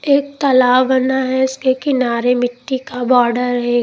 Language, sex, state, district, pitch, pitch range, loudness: Hindi, female, Chandigarh, Chandigarh, 255 Hz, 245-265 Hz, -15 LUFS